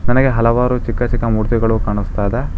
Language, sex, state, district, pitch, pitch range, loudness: Kannada, male, Karnataka, Bangalore, 115 Hz, 110-120 Hz, -17 LUFS